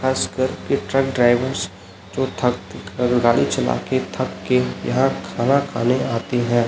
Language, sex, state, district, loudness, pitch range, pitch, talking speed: Hindi, male, Chhattisgarh, Raipur, -20 LUFS, 95-130 Hz, 120 Hz, 150 wpm